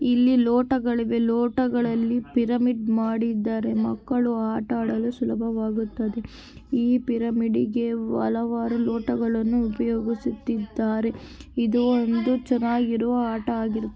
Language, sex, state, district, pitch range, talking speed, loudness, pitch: Kannada, female, Karnataka, Gulbarga, 225-245 Hz, 80 wpm, -24 LUFS, 230 Hz